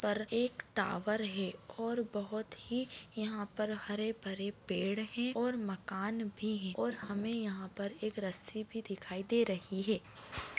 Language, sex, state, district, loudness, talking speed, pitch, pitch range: Hindi, female, Bihar, Begusarai, -37 LUFS, 155 wpm, 215 Hz, 200-225 Hz